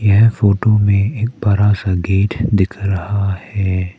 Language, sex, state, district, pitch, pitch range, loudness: Hindi, male, Arunachal Pradesh, Papum Pare, 100 Hz, 95-105 Hz, -16 LUFS